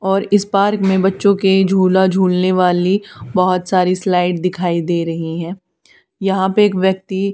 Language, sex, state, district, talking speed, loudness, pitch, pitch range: Hindi, female, Haryana, Charkhi Dadri, 165 wpm, -15 LUFS, 190 Hz, 180-195 Hz